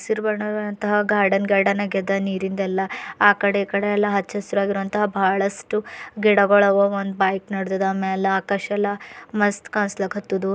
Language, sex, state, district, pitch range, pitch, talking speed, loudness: Kannada, female, Karnataka, Bidar, 195-205 Hz, 200 Hz, 125 wpm, -21 LUFS